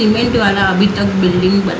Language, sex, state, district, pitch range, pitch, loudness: Hindi, female, Maharashtra, Mumbai Suburban, 190-210 Hz, 200 Hz, -13 LUFS